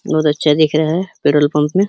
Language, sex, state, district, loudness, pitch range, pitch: Hindi, male, Uttar Pradesh, Hamirpur, -15 LUFS, 150-160 Hz, 155 Hz